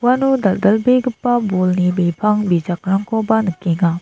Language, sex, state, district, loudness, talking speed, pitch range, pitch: Garo, female, Meghalaya, South Garo Hills, -16 LUFS, 90 wpm, 180-230 Hz, 205 Hz